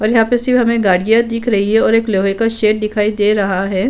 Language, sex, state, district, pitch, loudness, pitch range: Hindi, female, Uttar Pradesh, Budaun, 220 Hz, -14 LUFS, 205-230 Hz